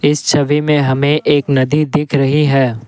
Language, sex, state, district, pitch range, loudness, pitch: Hindi, male, Assam, Kamrup Metropolitan, 135-150 Hz, -13 LUFS, 145 Hz